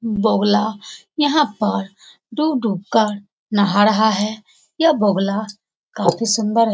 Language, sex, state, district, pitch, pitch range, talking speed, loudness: Hindi, female, Bihar, Saran, 215 Hz, 205-225 Hz, 115 wpm, -18 LUFS